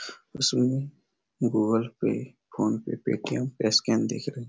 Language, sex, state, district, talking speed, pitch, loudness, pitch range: Hindi, male, Chhattisgarh, Raigarh, 135 wpm, 125 Hz, -27 LUFS, 115-135 Hz